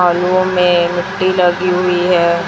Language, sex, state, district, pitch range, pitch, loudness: Hindi, male, Chhattisgarh, Raipur, 175-180 Hz, 180 Hz, -13 LUFS